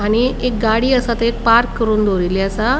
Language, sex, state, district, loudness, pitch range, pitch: Konkani, female, Goa, North and South Goa, -16 LUFS, 215-240 Hz, 230 Hz